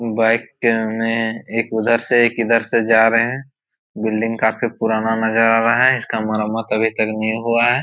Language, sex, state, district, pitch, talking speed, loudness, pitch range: Hindi, male, Chhattisgarh, Raigarh, 115 Hz, 200 wpm, -17 LUFS, 110-115 Hz